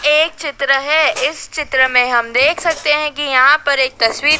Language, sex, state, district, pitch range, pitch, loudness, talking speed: Hindi, female, Madhya Pradesh, Dhar, 260-305 Hz, 290 Hz, -14 LUFS, 220 wpm